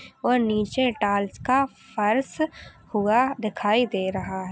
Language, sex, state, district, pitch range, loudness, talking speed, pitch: Hindi, female, Chhattisgarh, Rajnandgaon, 200-255 Hz, -24 LUFS, 105 wpm, 215 Hz